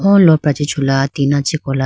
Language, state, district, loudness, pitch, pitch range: Idu Mishmi, Arunachal Pradesh, Lower Dibang Valley, -14 LUFS, 145 Hz, 135-155 Hz